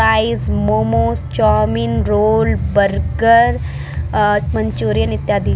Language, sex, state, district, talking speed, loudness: Hindi, female, Uttar Pradesh, Muzaffarnagar, 85 wpm, -15 LUFS